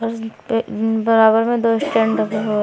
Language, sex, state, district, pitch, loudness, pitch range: Hindi, female, Uttar Pradesh, Shamli, 225 Hz, -17 LUFS, 220-230 Hz